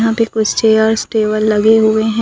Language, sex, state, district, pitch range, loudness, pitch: Hindi, female, Bihar, Katihar, 220-225 Hz, -13 LUFS, 220 Hz